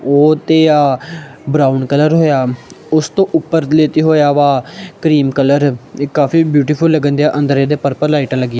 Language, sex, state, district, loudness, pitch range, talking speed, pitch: Punjabi, male, Punjab, Kapurthala, -13 LUFS, 140-155 Hz, 160 wpm, 150 Hz